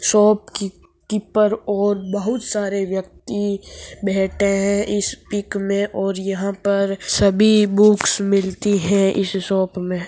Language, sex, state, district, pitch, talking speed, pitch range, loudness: Marwari, female, Rajasthan, Nagaur, 200 Hz, 120 wpm, 195-205 Hz, -19 LUFS